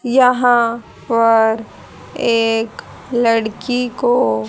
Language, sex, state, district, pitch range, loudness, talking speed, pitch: Hindi, female, Haryana, Rohtak, 225-245 Hz, -16 LUFS, 65 wpm, 230 Hz